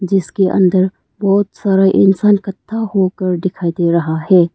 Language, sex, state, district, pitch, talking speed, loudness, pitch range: Hindi, female, Arunachal Pradesh, Papum Pare, 190 Hz, 145 wpm, -14 LUFS, 180-195 Hz